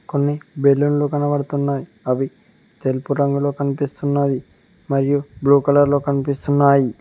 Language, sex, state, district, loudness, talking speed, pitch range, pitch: Telugu, male, Telangana, Mahabubabad, -19 LUFS, 105 wpm, 140-145 Hz, 140 Hz